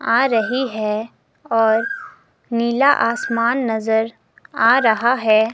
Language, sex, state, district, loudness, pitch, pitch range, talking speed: Hindi, female, Himachal Pradesh, Shimla, -18 LUFS, 230 Hz, 220-245 Hz, 110 wpm